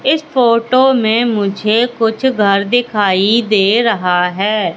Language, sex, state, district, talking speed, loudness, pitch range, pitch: Hindi, female, Madhya Pradesh, Katni, 125 wpm, -13 LUFS, 205-240 Hz, 225 Hz